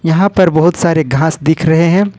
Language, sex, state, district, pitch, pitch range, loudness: Hindi, male, Jharkhand, Ranchi, 165 Hz, 160-185 Hz, -11 LUFS